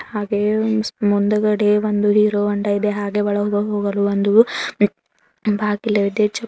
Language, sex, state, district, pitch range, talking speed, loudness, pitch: Kannada, female, Karnataka, Bidar, 205-210 Hz, 110 wpm, -18 LUFS, 210 Hz